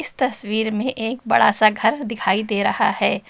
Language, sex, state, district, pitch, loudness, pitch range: Hindi, female, Uttar Pradesh, Lucknow, 220 Hz, -19 LUFS, 210-250 Hz